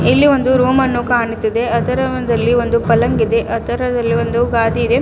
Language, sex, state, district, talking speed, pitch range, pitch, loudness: Kannada, female, Karnataka, Bidar, 170 wpm, 230-255 Hz, 240 Hz, -15 LUFS